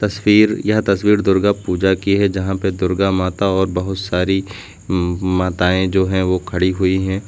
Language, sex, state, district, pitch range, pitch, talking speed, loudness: Hindi, male, Uttar Pradesh, Lucknow, 90-100 Hz, 95 Hz, 180 wpm, -17 LUFS